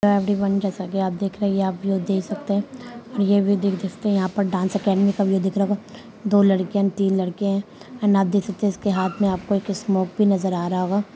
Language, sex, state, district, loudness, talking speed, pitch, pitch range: Hindi, female, Bihar, Gaya, -22 LUFS, 260 wpm, 200 Hz, 190-205 Hz